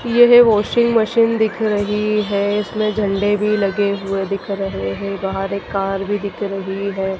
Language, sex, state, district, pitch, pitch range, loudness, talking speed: Hindi, female, Madhya Pradesh, Dhar, 205 Hz, 195-215 Hz, -18 LUFS, 175 wpm